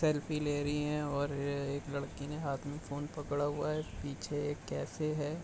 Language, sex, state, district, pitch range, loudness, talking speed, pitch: Hindi, male, Bihar, Bhagalpur, 140-150 Hz, -37 LUFS, 200 wpm, 145 Hz